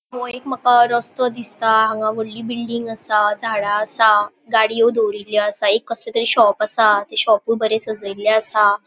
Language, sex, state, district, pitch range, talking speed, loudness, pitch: Konkani, female, Goa, North and South Goa, 210-235 Hz, 160 wpm, -18 LUFS, 220 Hz